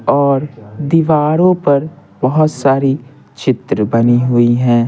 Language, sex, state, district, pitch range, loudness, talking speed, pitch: Hindi, male, Bihar, Patna, 120-150 Hz, -13 LUFS, 110 wpm, 140 Hz